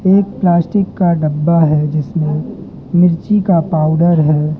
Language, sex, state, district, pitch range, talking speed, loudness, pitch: Hindi, male, Madhya Pradesh, Katni, 155-180 Hz, 130 wpm, -13 LUFS, 165 Hz